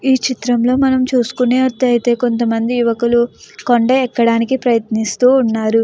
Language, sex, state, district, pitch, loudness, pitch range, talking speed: Telugu, female, Andhra Pradesh, Guntur, 240 Hz, -15 LUFS, 235-255 Hz, 155 wpm